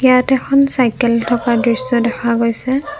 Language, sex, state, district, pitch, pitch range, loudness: Assamese, female, Assam, Kamrup Metropolitan, 245 Hz, 235-260 Hz, -15 LUFS